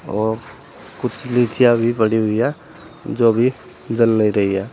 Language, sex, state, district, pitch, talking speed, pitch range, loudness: Hindi, male, Uttar Pradesh, Saharanpur, 115 Hz, 165 wpm, 110-120 Hz, -18 LUFS